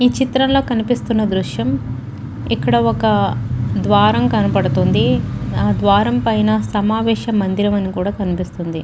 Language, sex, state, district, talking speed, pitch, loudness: Telugu, female, Andhra Pradesh, Chittoor, 115 wpm, 175 Hz, -16 LUFS